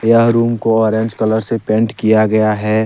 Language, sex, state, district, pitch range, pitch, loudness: Hindi, male, Jharkhand, Deoghar, 110-115 Hz, 110 Hz, -14 LUFS